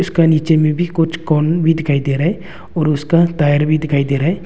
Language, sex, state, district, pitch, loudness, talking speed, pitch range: Hindi, male, Arunachal Pradesh, Longding, 160 Hz, -15 LUFS, 255 wpm, 150-170 Hz